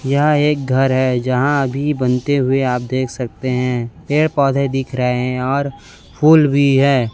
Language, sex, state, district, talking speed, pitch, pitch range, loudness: Hindi, male, Chhattisgarh, Raipur, 175 wpm, 130 Hz, 125-140 Hz, -16 LUFS